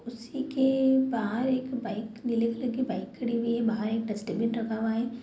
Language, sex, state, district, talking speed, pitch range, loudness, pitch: Hindi, female, Bihar, Sitamarhi, 195 wpm, 225-255 Hz, -29 LUFS, 235 Hz